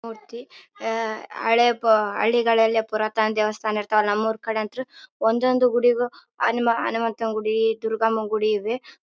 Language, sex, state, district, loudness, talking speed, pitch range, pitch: Kannada, female, Karnataka, Raichur, -22 LUFS, 110 wpm, 220-235 Hz, 225 Hz